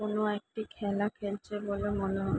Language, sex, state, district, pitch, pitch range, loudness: Bengali, female, West Bengal, Jalpaiguri, 205 Hz, 200-210 Hz, -34 LUFS